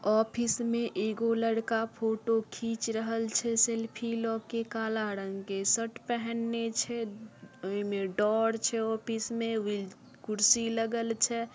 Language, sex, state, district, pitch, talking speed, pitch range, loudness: Maithili, female, Bihar, Samastipur, 225 Hz, 140 wpm, 220-230 Hz, -31 LUFS